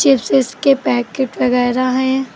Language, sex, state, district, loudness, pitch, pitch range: Hindi, female, Uttar Pradesh, Lucknow, -15 LUFS, 255 Hz, 245-265 Hz